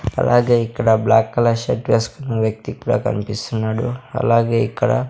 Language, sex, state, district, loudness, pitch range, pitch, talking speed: Telugu, male, Andhra Pradesh, Sri Satya Sai, -18 LUFS, 110-125 Hz, 115 Hz, 130 wpm